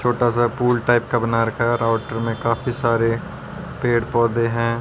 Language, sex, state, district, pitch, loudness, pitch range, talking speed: Hindi, male, Haryana, Rohtak, 115 Hz, -20 LUFS, 115-120 Hz, 185 wpm